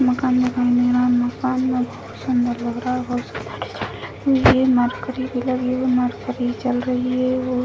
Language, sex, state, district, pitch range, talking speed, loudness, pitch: Hindi, female, Bihar, Bhagalpur, 245-255 Hz, 210 wpm, -20 LUFS, 250 Hz